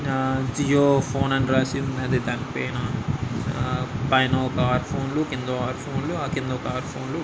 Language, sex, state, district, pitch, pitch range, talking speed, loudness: Telugu, male, Andhra Pradesh, Anantapur, 130 Hz, 130-135 Hz, 165 wpm, -24 LUFS